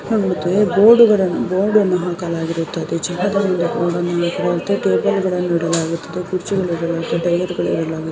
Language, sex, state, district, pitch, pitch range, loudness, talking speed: Kannada, female, Karnataka, Dharwad, 175 Hz, 170-195 Hz, -17 LUFS, 45 wpm